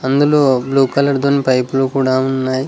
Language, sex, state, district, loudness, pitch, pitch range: Telugu, male, Telangana, Mahabubabad, -14 LUFS, 135 Hz, 130-140 Hz